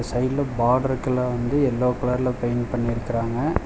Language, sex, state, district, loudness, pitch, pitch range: Tamil, male, Tamil Nadu, Chennai, -23 LUFS, 125 Hz, 120-130 Hz